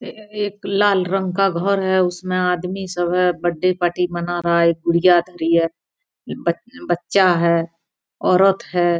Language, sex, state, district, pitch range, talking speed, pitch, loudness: Maithili, female, Bihar, Araria, 170-195 Hz, 145 wpm, 180 Hz, -19 LUFS